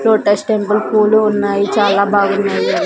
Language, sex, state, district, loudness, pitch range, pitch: Telugu, female, Andhra Pradesh, Sri Satya Sai, -14 LUFS, 200-215 Hz, 205 Hz